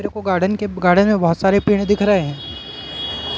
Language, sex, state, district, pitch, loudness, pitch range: Hindi, male, Madhya Pradesh, Katni, 195 Hz, -17 LUFS, 180-205 Hz